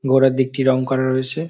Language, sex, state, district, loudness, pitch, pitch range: Bengali, male, West Bengal, Dakshin Dinajpur, -18 LUFS, 130 Hz, 130-135 Hz